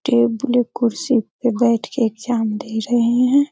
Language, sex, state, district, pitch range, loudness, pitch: Hindi, female, Bihar, Darbhanga, 230-245 Hz, -19 LUFS, 240 Hz